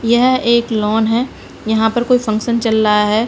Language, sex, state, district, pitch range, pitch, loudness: Hindi, female, Uttar Pradesh, Budaun, 220-235 Hz, 225 Hz, -15 LUFS